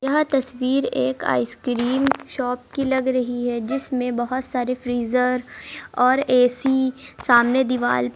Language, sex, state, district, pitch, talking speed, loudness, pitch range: Hindi, male, Uttar Pradesh, Lucknow, 250 Hz, 130 wpm, -21 LUFS, 245-265 Hz